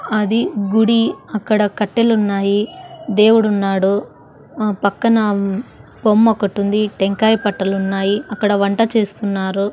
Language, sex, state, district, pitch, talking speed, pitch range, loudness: Telugu, female, Andhra Pradesh, Annamaya, 210 Hz, 105 wpm, 200-220 Hz, -16 LUFS